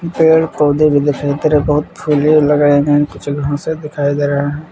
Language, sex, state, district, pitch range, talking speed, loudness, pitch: Hindi, male, Jharkhand, Palamu, 145-155 Hz, 205 wpm, -14 LUFS, 145 Hz